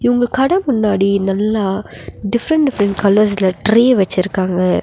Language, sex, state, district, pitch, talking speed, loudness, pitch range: Tamil, female, Tamil Nadu, Nilgiris, 210 Hz, 110 wpm, -15 LUFS, 195-245 Hz